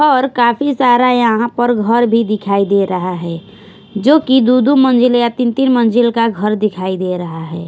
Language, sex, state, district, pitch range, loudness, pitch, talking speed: Hindi, female, Bihar, West Champaran, 200-250 Hz, -13 LUFS, 235 Hz, 205 wpm